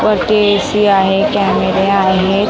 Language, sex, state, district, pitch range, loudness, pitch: Marathi, female, Maharashtra, Mumbai Suburban, 195-205 Hz, -12 LUFS, 200 Hz